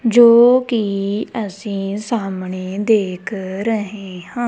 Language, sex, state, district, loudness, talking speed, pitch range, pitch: Punjabi, female, Punjab, Kapurthala, -17 LUFS, 95 wpm, 195-230 Hz, 205 Hz